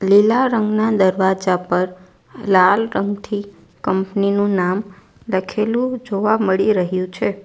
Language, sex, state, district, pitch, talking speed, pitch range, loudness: Gujarati, female, Gujarat, Valsad, 200 Hz, 115 wpm, 185-215 Hz, -18 LUFS